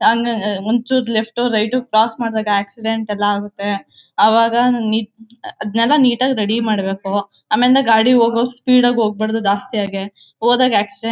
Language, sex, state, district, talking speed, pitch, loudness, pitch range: Kannada, female, Karnataka, Mysore, 145 wpm, 225 Hz, -16 LUFS, 210-240 Hz